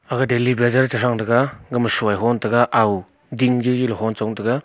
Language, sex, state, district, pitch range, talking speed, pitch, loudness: Wancho, male, Arunachal Pradesh, Longding, 110-125 Hz, 195 wpm, 120 Hz, -19 LUFS